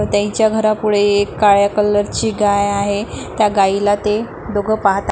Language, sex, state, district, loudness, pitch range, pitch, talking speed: Marathi, female, Maharashtra, Nagpur, -15 LUFS, 200-215 Hz, 205 Hz, 150 wpm